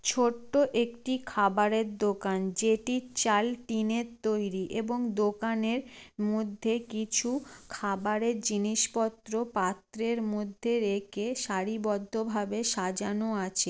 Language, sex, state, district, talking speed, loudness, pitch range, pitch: Bengali, female, West Bengal, Jalpaiguri, 95 wpm, -30 LUFS, 205-235 Hz, 220 Hz